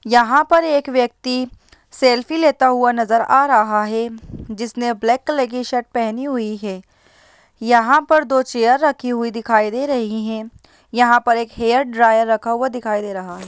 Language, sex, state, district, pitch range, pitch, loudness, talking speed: Hindi, female, Bihar, Lakhisarai, 225-260 Hz, 240 Hz, -17 LUFS, 180 wpm